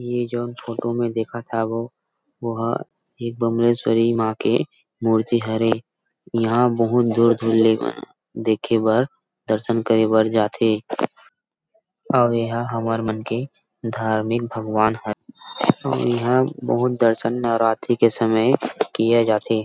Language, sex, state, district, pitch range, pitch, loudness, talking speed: Chhattisgarhi, male, Chhattisgarh, Rajnandgaon, 110-120 Hz, 115 Hz, -21 LUFS, 125 wpm